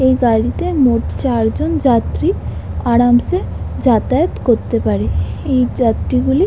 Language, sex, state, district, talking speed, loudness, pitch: Bengali, female, West Bengal, Jhargram, 120 wpm, -15 LUFS, 220 Hz